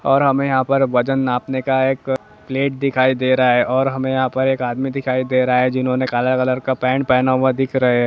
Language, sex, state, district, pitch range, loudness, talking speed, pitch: Hindi, male, Jharkhand, Jamtara, 130-135 Hz, -18 LUFS, 230 wpm, 130 Hz